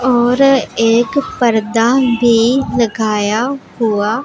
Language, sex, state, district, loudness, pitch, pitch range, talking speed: Hindi, female, Punjab, Pathankot, -13 LUFS, 235 Hz, 225-255 Hz, 85 wpm